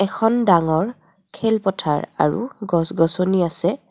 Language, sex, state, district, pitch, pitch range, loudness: Assamese, female, Assam, Kamrup Metropolitan, 190 Hz, 170-220 Hz, -20 LUFS